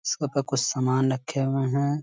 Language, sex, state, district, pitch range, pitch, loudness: Hindi, male, Bihar, Muzaffarpur, 130-140 Hz, 135 Hz, -25 LUFS